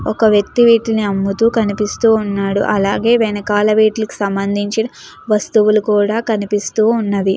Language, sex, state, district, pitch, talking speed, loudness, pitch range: Telugu, female, Andhra Pradesh, Chittoor, 210 Hz, 115 wpm, -15 LUFS, 205-220 Hz